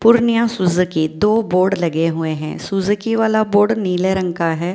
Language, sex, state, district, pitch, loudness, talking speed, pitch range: Hindi, female, Bihar, Purnia, 190 Hz, -17 LUFS, 190 wpm, 170-220 Hz